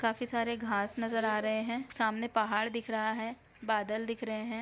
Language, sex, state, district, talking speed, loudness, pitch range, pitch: Hindi, female, Chhattisgarh, Raigarh, 220 wpm, -33 LUFS, 220-230 Hz, 225 Hz